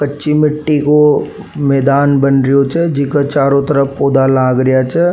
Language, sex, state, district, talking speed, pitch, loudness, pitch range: Rajasthani, male, Rajasthan, Nagaur, 165 wpm, 140 Hz, -12 LUFS, 135-150 Hz